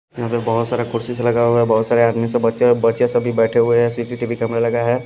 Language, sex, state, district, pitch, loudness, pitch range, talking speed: Hindi, male, Punjab, Pathankot, 120 Hz, -17 LUFS, 115-120 Hz, 310 wpm